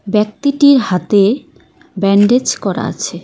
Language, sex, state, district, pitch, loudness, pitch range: Bengali, female, West Bengal, Cooch Behar, 210 Hz, -13 LUFS, 200-265 Hz